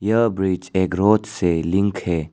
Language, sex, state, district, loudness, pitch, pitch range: Hindi, male, Arunachal Pradesh, Lower Dibang Valley, -20 LUFS, 95 Hz, 90-105 Hz